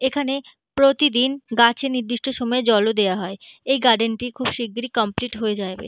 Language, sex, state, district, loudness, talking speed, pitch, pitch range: Bengali, female, West Bengal, Purulia, -20 LUFS, 155 wpm, 245 Hz, 225-265 Hz